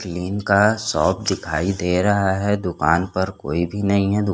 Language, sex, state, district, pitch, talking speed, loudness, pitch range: Hindi, male, Chhattisgarh, Korba, 95 Hz, 195 wpm, -20 LUFS, 90-100 Hz